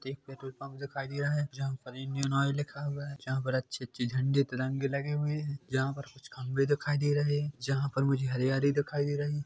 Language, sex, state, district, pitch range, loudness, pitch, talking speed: Hindi, male, Chhattisgarh, Korba, 135-145 Hz, -32 LUFS, 140 Hz, 235 wpm